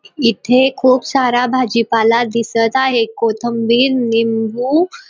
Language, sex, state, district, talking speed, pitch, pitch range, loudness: Marathi, female, Maharashtra, Dhule, 105 wpm, 240 Hz, 230-260 Hz, -14 LUFS